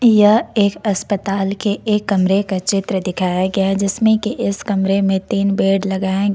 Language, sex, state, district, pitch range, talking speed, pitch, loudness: Hindi, female, Jharkhand, Ranchi, 195-205 Hz, 190 wpm, 195 Hz, -17 LUFS